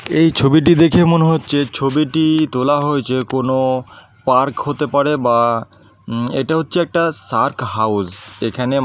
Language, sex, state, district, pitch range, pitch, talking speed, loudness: Bengali, male, West Bengal, Kolkata, 120-155 Hz, 135 Hz, 135 wpm, -16 LUFS